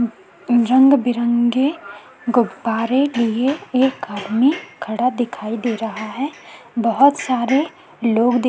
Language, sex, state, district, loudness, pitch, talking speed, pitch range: Hindi, female, Chhattisgarh, Kabirdham, -18 LUFS, 245 Hz, 105 wpm, 230-270 Hz